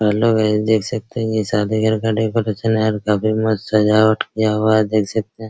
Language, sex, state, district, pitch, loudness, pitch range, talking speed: Hindi, male, Bihar, Araria, 110 Hz, -17 LUFS, 105-110 Hz, 230 wpm